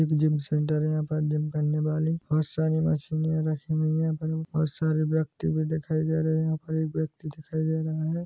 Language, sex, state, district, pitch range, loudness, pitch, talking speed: Hindi, male, Chhattisgarh, Bilaspur, 155-160 Hz, -27 LUFS, 155 Hz, 225 wpm